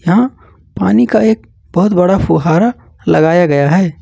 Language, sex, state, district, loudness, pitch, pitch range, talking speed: Hindi, male, Jharkhand, Ranchi, -12 LUFS, 185 Hz, 170-220 Hz, 135 wpm